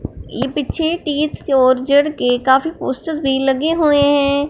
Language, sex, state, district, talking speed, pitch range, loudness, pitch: Hindi, female, Punjab, Fazilka, 145 wpm, 265-305 Hz, -16 LUFS, 285 Hz